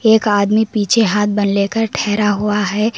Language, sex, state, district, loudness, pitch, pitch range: Hindi, female, Karnataka, Koppal, -15 LUFS, 210 Hz, 205-220 Hz